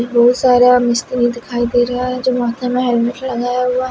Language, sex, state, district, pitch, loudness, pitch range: Hindi, female, Himachal Pradesh, Shimla, 245 Hz, -15 LUFS, 240-250 Hz